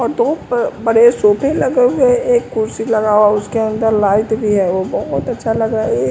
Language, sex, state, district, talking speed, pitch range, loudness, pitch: Hindi, male, Bihar, West Champaran, 205 wpm, 210-245 Hz, -14 LUFS, 225 Hz